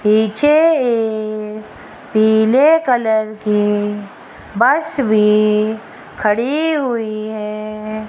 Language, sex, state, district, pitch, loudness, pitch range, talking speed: Hindi, female, Rajasthan, Jaipur, 215 Hz, -16 LUFS, 215-245 Hz, 75 wpm